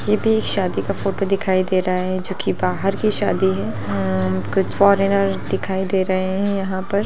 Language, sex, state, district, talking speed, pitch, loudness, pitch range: Hindi, female, Bihar, Lakhisarai, 210 wpm, 190 Hz, -19 LUFS, 185-200 Hz